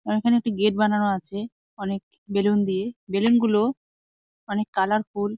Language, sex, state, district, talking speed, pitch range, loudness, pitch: Bengali, female, West Bengal, Jalpaiguri, 155 wpm, 200-220 Hz, -24 LUFS, 210 Hz